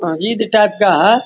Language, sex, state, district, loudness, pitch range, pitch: Hindi, male, Bihar, Vaishali, -13 LUFS, 200-225 Hz, 210 Hz